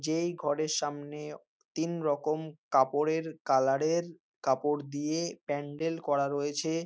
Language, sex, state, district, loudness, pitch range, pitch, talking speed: Bengali, male, West Bengal, North 24 Parganas, -31 LUFS, 145-160 Hz, 150 Hz, 115 wpm